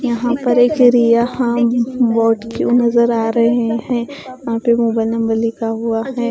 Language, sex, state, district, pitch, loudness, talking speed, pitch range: Hindi, female, Odisha, Khordha, 235 Hz, -15 LUFS, 170 wpm, 230-245 Hz